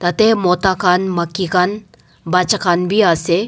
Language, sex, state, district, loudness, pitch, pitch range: Nagamese, male, Nagaland, Dimapur, -15 LUFS, 180 Hz, 175-195 Hz